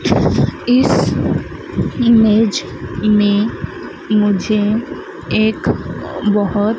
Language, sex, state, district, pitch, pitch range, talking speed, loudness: Hindi, female, Madhya Pradesh, Dhar, 215 Hz, 205-225 Hz, 55 wpm, -15 LUFS